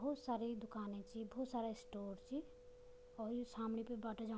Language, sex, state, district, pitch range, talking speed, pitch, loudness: Garhwali, female, Uttarakhand, Tehri Garhwal, 225-260 Hz, 205 wpm, 235 Hz, -46 LUFS